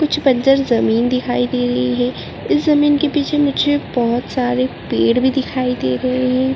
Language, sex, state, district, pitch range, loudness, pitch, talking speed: Hindi, female, Uttarakhand, Uttarkashi, 240-275 Hz, -16 LUFS, 255 Hz, 185 wpm